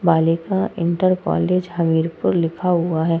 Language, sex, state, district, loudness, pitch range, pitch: Hindi, female, Uttar Pradesh, Hamirpur, -19 LUFS, 165-180 Hz, 170 Hz